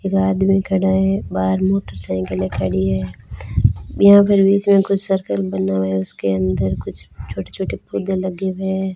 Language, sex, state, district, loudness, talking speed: Hindi, female, Rajasthan, Bikaner, -18 LUFS, 175 wpm